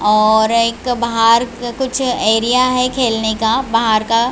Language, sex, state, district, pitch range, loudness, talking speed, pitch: Hindi, female, Chhattisgarh, Raigarh, 220-250 Hz, -14 LUFS, 140 wpm, 230 Hz